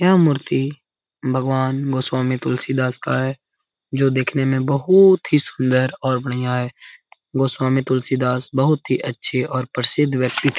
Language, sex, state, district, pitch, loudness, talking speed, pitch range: Hindi, male, Bihar, Lakhisarai, 130 Hz, -19 LUFS, 170 wpm, 130-140 Hz